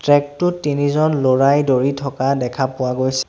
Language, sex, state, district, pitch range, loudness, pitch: Assamese, male, Assam, Sonitpur, 130-145 Hz, -17 LUFS, 140 Hz